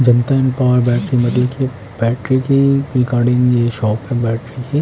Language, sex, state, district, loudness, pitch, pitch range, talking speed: Hindi, male, Bihar, Kaimur, -15 LUFS, 125 Hz, 120-130 Hz, 135 wpm